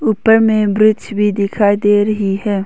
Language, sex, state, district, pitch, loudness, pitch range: Hindi, female, Arunachal Pradesh, Longding, 210 Hz, -13 LUFS, 200-215 Hz